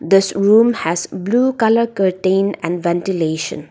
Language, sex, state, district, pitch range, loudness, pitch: English, female, Nagaland, Dimapur, 175-220 Hz, -16 LUFS, 195 Hz